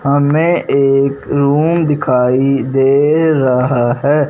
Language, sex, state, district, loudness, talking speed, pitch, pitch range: Hindi, male, Punjab, Fazilka, -13 LUFS, 100 wpm, 140 Hz, 135-150 Hz